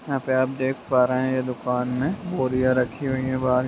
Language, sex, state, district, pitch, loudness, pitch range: Hindi, male, Bihar, Gaya, 130 Hz, -24 LUFS, 125-130 Hz